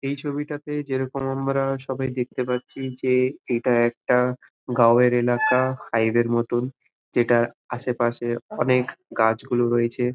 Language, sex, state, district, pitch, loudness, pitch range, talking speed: Bengali, male, West Bengal, Malda, 125 Hz, -23 LUFS, 120-130 Hz, 130 wpm